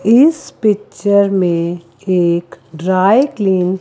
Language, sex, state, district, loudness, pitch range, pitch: Hindi, female, Chandigarh, Chandigarh, -14 LUFS, 175-205 Hz, 190 Hz